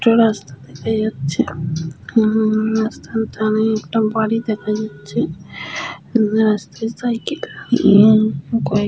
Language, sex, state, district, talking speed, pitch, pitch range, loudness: Bengali, female, West Bengal, Paschim Medinipur, 115 wpm, 215 Hz, 205-225 Hz, -18 LUFS